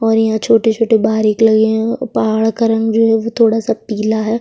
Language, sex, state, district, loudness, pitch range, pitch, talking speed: Hindi, female, Chhattisgarh, Sukma, -14 LUFS, 220-225 Hz, 225 Hz, 220 wpm